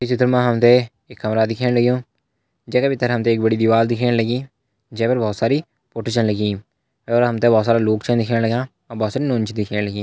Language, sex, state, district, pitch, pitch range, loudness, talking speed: Hindi, male, Uttarakhand, Uttarkashi, 115 Hz, 110-125 Hz, -19 LUFS, 250 wpm